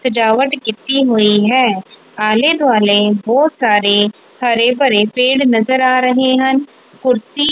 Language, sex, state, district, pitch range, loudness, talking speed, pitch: Punjabi, female, Punjab, Kapurthala, 215-265 Hz, -13 LUFS, 130 wpm, 250 Hz